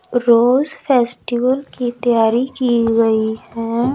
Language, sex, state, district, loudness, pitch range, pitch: Hindi, female, Chandigarh, Chandigarh, -16 LUFS, 230-255 Hz, 240 Hz